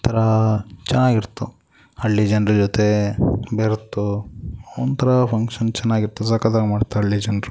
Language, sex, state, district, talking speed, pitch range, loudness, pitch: Kannada, male, Karnataka, Shimoga, 105 wpm, 105-115 Hz, -19 LUFS, 110 Hz